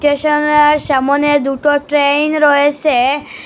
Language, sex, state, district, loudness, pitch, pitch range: Bengali, female, Assam, Hailakandi, -12 LUFS, 290 Hz, 285-295 Hz